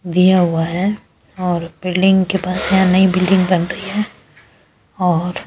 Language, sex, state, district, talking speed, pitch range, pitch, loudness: Hindi, female, Bihar, West Champaran, 155 wpm, 180-190 Hz, 185 Hz, -16 LUFS